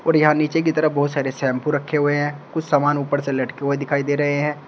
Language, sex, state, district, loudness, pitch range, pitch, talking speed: Hindi, male, Uttar Pradesh, Shamli, -20 LUFS, 140-150 Hz, 145 Hz, 270 wpm